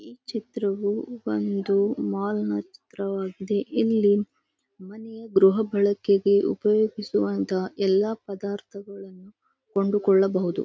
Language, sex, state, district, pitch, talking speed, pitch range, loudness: Kannada, female, Karnataka, Gulbarga, 200 Hz, 75 wpm, 190-210 Hz, -24 LUFS